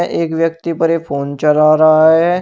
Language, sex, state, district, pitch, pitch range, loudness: Hindi, male, Uttar Pradesh, Shamli, 165 Hz, 155-165 Hz, -13 LUFS